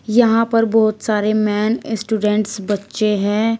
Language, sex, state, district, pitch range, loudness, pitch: Hindi, female, Uttar Pradesh, Shamli, 210-225 Hz, -17 LUFS, 215 Hz